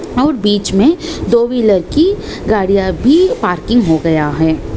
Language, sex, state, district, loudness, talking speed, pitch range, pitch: Hindi, female, Chhattisgarh, Bastar, -13 LUFS, 165 wpm, 185-290 Hz, 215 Hz